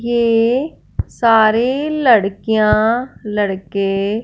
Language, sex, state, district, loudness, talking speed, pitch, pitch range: Hindi, female, Punjab, Fazilka, -15 LUFS, 55 wpm, 225 Hz, 210-240 Hz